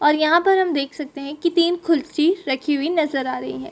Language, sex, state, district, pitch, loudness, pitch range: Hindi, female, Bihar, Sitamarhi, 300 Hz, -20 LUFS, 280-340 Hz